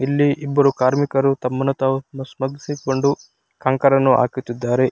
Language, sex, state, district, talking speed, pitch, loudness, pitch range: Kannada, male, Karnataka, Raichur, 85 wpm, 135 Hz, -19 LUFS, 130-140 Hz